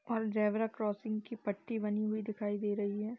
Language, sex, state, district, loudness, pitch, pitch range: Hindi, female, Chhattisgarh, Raigarh, -36 LUFS, 215 Hz, 210-225 Hz